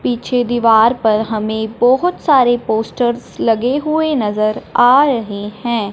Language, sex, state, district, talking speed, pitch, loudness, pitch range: Hindi, male, Punjab, Fazilka, 130 wpm, 240 Hz, -15 LUFS, 220-255 Hz